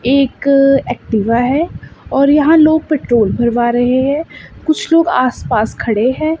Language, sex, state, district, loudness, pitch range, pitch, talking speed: Hindi, female, Chandigarh, Chandigarh, -13 LUFS, 240-310 Hz, 275 Hz, 150 wpm